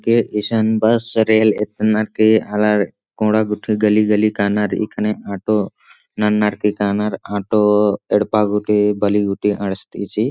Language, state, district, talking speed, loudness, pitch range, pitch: Kurukh, Chhattisgarh, Jashpur, 145 wpm, -17 LUFS, 105-110 Hz, 105 Hz